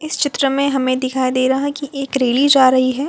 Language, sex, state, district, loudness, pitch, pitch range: Hindi, female, Bihar, Gopalganj, -16 LUFS, 270 Hz, 255-280 Hz